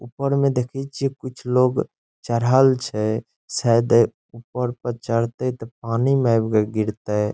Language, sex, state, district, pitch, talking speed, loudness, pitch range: Maithili, male, Bihar, Saharsa, 120 Hz, 145 wpm, -21 LUFS, 115-130 Hz